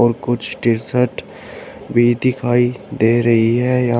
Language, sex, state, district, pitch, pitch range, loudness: Hindi, male, Uttar Pradesh, Shamli, 120 Hz, 115-125 Hz, -16 LUFS